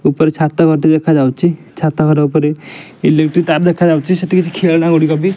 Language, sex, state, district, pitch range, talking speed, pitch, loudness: Odia, male, Odisha, Nuapada, 155-175 Hz, 155 wpm, 160 Hz, -13 LUFS